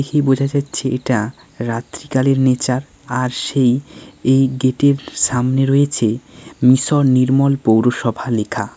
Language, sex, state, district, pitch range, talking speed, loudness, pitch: Bengali, male, West Bengal, Paschim Medinipur, 125-140 Hz, 115 wpm, -16 LUFS, 130 Hz